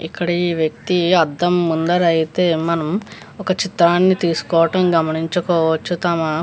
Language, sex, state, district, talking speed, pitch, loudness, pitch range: Telugu, female, Andhra Pradesh, Visakhapatnam, 120 wpm, 170 Hz, -17 LUFS, 165-180 Hz